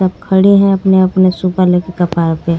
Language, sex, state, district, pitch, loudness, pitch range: Hindi, female, Jharkhand, Garhwa, 185 Hz, -11 LUFS, 175-190 Hz